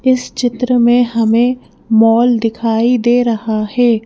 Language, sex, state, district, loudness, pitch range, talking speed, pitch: Hindi, female, Madhya Pradesh, Bhopal, -13 LUFS, 225-245 Hz, 135 wpm, 235 Hz